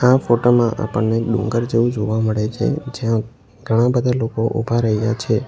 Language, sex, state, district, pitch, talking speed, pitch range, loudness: Gujarati, male, Gujarat, Valsad, 115 Hz, 165 wpm, 110-120 Hz, -18 LUFS